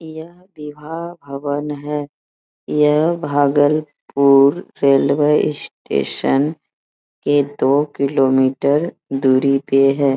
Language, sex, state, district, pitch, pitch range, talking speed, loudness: Hindi, female, Bihar, Bhagalpur, 145 Hz, 135-150 Hz, 85 wpm, -17 LUFS